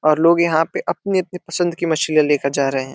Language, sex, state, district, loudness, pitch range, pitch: Hindi, male, Uttar Pradesh, Deoria, -18 LUFS, 150-175 Hz, 165 Hz